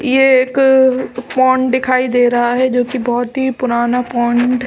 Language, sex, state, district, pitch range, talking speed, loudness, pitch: Hindi, female, Chhattisgarh, Balrampur, 245-260 Hz, 165 wpm, -14 LUFS, 255 Hz